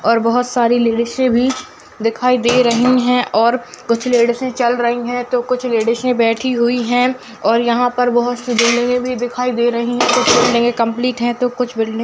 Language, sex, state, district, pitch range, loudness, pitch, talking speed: Hindi, female, Bihar, Madhepura, 235-250 Hz, -15 LUFS, 245 Hz, 200 wpm